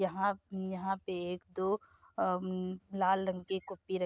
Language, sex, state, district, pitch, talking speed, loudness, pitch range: Hindi, female, Uttar Pradesh, Jyotiba Phule Nagar, 190 Hz, 145 wpm, -36 LUFS, 185-195 Hz